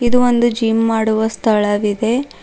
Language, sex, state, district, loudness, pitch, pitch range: Kannada, female, Karnataka, Bidar, -16 LUFS, 225 Hz, 220-240 Hz